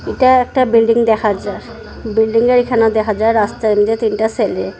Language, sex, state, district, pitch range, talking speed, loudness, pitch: Bengali, female, Assam, Hailakandi, 215-235 Hz, 160 wpm, -14 LUFS, 220 Hz